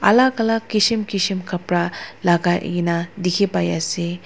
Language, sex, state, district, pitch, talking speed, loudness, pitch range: Nagamese, female, Nagaland, Dimapur, 180 Hz, 140 wpm, -20 LUFS, 175-210 Hz